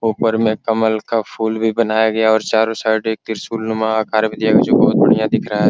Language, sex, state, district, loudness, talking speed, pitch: Hindi, male, Bihar, Araria, -16 LUFS, 240 wpm, 110 Hz